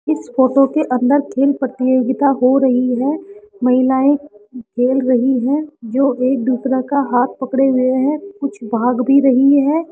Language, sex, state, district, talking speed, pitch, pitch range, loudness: Hindi, female, Rajasthan, Jaipur, 155 wpm, 265 Hz, 255-280 Hz, -15 LUFS